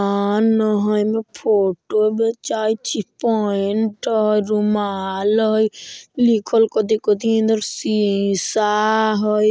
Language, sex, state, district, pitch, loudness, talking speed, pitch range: Bajjika, female, Bihar, Vaishali, 215 Hz, -18 LUFS, 115 wpm, 210-220 Hz